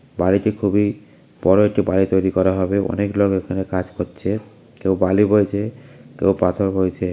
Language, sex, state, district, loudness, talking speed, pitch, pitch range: Bengali, male, West Bengal, North 24 Parganas, -19 LUFS, 160 wpm, 100 Hz, 95-105 Hz